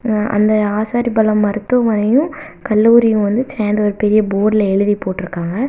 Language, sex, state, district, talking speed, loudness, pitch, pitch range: Tamil, female, Tamil Nadu, Kanyakumari, 105 wpm, -15 LUFS, 215 Hz, 205-235 Hz